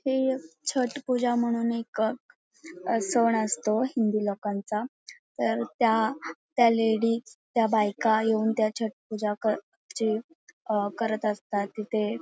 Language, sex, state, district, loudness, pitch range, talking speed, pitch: Marathi, female, Maharashtra, Pune, -27 LUFS, 215-240 Hz, 125 wpm, 225 Hz